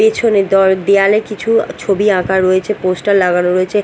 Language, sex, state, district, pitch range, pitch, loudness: Bengali, female, Bihar, Katihar, 185-210 Hz, 195 Hz, -13 LUFS